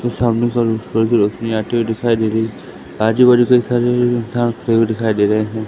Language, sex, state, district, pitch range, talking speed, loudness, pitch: Hindi, male, Madhya Pradesh, Katni, 110-120 Hz, 210 wpm, -16 LUFS, 115 Hz